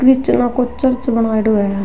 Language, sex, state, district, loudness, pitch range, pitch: Rajasthani, female, Rajasthan, Nagaur, -15 LUFS, 220-255 Hz, 245 Hz